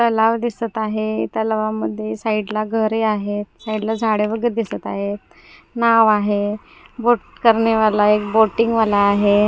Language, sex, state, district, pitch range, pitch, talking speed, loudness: Marathi, female, Maharashtra, Gondia, 210-225 Hz, 215 Hz, 140 wpm, -18 LUFS